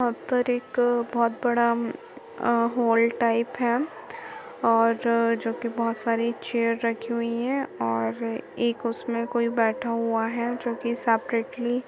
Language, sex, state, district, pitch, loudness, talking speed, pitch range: Hindi, female, Chhattisgarh, Kabirdham, 235 Hz, -25 LUFS, 145 wpm, 230-240 Hz